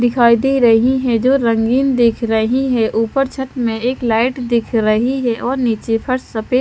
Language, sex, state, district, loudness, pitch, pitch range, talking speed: Hindi, female, Himachal Pradesh, Shimla, -15 LUFS, 240 Hz, 225-255 Hz, 190 wpm